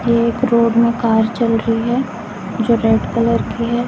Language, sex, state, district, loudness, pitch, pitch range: Hindi, female, Chhattisgarh, Raipur, -16 LUFS, 230 Hz, 225-235 Hz